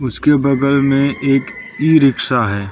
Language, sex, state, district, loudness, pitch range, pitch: Hindi, male, Arunachal Pradesh, Lower Dibang Valley, -14 LUFS, 130-140 Hz, 135 Hz